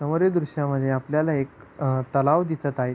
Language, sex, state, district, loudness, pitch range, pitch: Marathi, male, Maharashtra, Pune, -24 LUFS, 130-155 Hz, 140 Hz